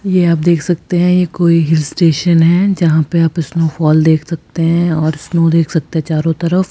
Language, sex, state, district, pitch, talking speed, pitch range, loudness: Hindi, female, Rajasthan, Jaipur, 165 Hz, 225 wpm, 160-175 Hz, -13 LUFS